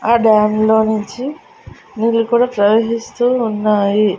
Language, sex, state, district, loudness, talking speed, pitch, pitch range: Telugu, female, Andhra Pradesh, Annamaya, -15 LUFS, 115 wpm, 220 Hz, 215-235 Hz